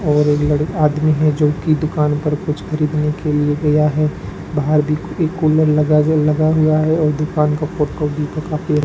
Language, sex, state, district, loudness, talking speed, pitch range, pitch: Hindi, male, Rajasthan, Bikaner, -16 LUFS, 195 wpm, 150-155 Hz, 150 Hz